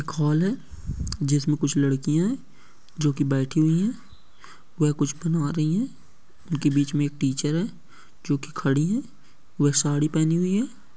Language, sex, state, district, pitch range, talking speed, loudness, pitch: Hindi, male, Rajasthan, Churu, 145-170 Hz, 175 wpm, -24 LUFS, 150 Hz